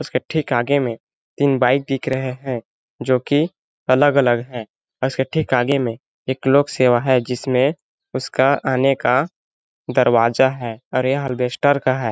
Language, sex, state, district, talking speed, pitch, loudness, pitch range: Hindi, male, Chhattisgarh, Balrampur, 150 wpm, 130 Hz, -19 LUFS, 125-140 Hz